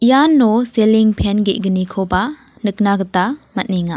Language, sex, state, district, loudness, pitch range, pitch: Garo, female, Meghalaya, West Garo Hills, -15 LUFS, 190-240 Hz, 210 Hz